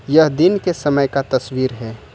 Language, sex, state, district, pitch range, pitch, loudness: Hindi, male, Jharkhand, Ranchi, 130-160 Hz, 140 Hz, -17 LUFS